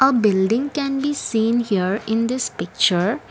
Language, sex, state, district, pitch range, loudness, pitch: English, female, Assam, Kamrup Metropolitan, 205-270 Hz, -20 LUFS, 230 Hz